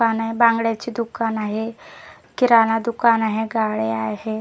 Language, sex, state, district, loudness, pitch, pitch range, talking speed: Marathi, female, Maharashtra, Gondia, -20 LUFS, 225 Hz, 220-230 Hz, 135 wpm